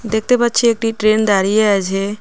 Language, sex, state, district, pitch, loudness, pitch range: Bengali, female, West Bengal, Cooch Behar, 215 Hz, -15 LUFS, 205-225 Hz